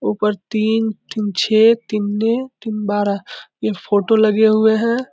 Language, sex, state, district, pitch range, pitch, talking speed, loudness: Hindi, male, Bihar, Samastipur, 205-225 Hz, 215 Hz, 130 wpm, -17 LUFS